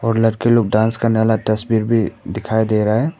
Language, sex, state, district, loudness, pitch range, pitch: Hindi, male, Arunachal Pradesh, Papum Pare, -17 LUFS, 110-115 Hz, 110 Hz